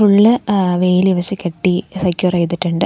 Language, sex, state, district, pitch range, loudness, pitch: Malayalam, female, Kerala, Thiruvananthapuram, 175-195 Hz, -15 LUFS, 180 Hz